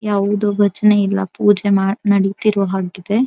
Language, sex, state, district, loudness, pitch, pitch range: Kannada, female, Karnataka, Dharwad, -16 LUFS, 200 Hz, 195-210 Hz